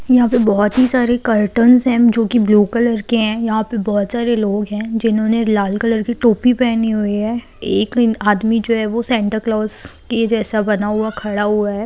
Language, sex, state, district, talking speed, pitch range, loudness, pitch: Hindi, female, Bihar, Saran, 200 wpm, 210-235 Hz, -16 LUFS, 225 Hz